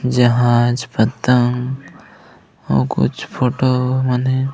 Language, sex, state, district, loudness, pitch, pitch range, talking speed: Chhattisgarhi, male, Chhattisgarh, Raigarh, -17 LUFS, 125 Hz, 120-130 Hz, 90 wpm